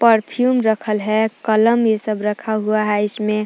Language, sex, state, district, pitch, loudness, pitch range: Hindi, female, Jharkhand, Palamu, 215 Hz, -18 LUFS, 215-225 Hz